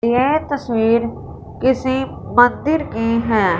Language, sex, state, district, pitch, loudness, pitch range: Hindi, female, Punjab, Fazilka, 245 Hz, -17 LUFS, 230-265 Hz